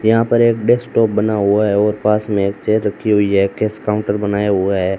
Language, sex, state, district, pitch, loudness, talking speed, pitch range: Hindi, male, Rajasthan, Bikaner, 105 Hz, -16 LUFS, 240 wpm, 100-110 Hz